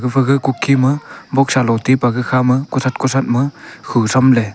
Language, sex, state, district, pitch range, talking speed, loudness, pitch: Wancho, male, Arunachal Pradesh, Longding, 125-135 Hz, 195 wpm, -15 LUFS, 130 Hz